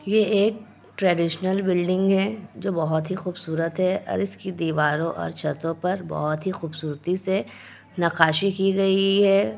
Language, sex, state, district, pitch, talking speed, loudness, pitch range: Hindi, female, Bihar, Kishanganj, 185 Hz, 150 wpm, -23 LUFS, 165-195 Hz